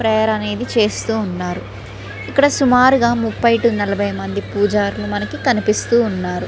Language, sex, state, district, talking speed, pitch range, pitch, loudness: Telugu, female, Andhra Pradesh, Srikakulam, 130 wpm, 180-235 Hz, 210 Hz, -17 LUFS